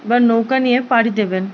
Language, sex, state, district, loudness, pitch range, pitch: Bengali, female, West Bengal, Purulia, -15 LUFS, 215-245 Hz, 230 Hz